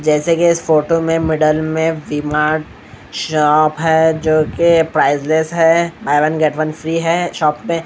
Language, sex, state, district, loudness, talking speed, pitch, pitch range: Hindi, male, Bihar, Katihar, -15 LUFS, 170 wpm, 155 Hz, 150-165 Hz